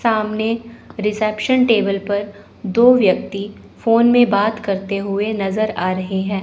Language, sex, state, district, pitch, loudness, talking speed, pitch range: Hindi, male, Chandigarh, Chandigarh, 210 Hz, -17 LUFS, 140 wpm, 200-225 Hz